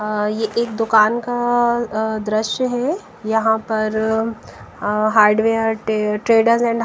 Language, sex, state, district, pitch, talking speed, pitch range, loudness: Hindi, female, Bihar, West Champaran, 220 Hz, 120 wpm, 215-230 Hz, -18 LUFS